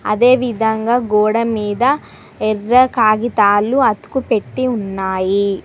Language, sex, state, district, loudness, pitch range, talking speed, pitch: Telugu, female, Telangana, Mahabubabad, -15 LUFS, 210-245 Hz, 75 wpm, 220 Hz